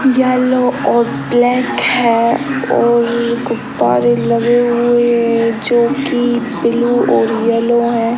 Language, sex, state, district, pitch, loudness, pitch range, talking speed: Hindi, male, Bihar, Sitamarhi, 240 Hz, -13 LUFS, 235-245 Hz, 110 wpm